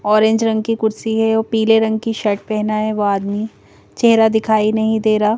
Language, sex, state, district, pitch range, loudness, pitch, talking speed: Hindi, female, Madhya Pradesh, Bhopal, 215-225 Hz, -16 LUFS, 220 Hz, 210 wpm